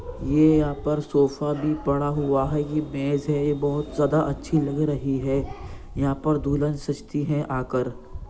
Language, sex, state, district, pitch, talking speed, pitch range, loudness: Hindi, male, Uttar Pradesh, Jyotiba Phule Nagar, 145 Hz, 175 wpm, 140-150 Hz, -24 LUFS